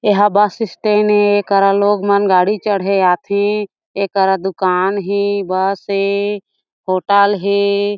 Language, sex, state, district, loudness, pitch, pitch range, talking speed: Chhattisgarhi, female, Chhattisgarh, Jashpur, -15 LUFS, 200 Hz, 195-205 Hz, 135 wpm